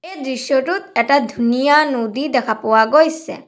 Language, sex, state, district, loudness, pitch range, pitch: Assamese, female, Assam, Sonitpur, -16 LUFS, 240-300 Hz, 270 Hz